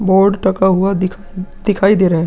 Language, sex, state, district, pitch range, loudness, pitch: Hindi, male, Uttar Pradesh, Hamirpur, 185-195 Hz, -14 LUFS, 190 Hz